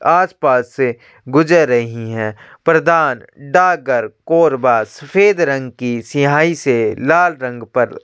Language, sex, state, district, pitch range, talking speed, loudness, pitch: Hindi, male, Chhattisgarh, Korba, 125-170 Hz, 120 wpm, -15 LUFS, 145 Hz